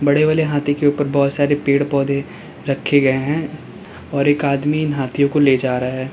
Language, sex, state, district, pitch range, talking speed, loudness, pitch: Hindi, male, Uttar Pradesh, Lalitpur, 140-145 Hz, 215 wpm, -17 LUFS, 140 Hz